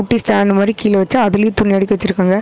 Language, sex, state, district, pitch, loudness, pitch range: Tamil, female, Tamil Nadu, Namakkal, 205 Hz, -14 LUFS, 200-220 Hz